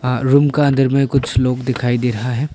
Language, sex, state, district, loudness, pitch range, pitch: Hindi, male, Arunachal Pradesh, Papum Pare, -16 LUFS, 125-140 Hz, 130 Hz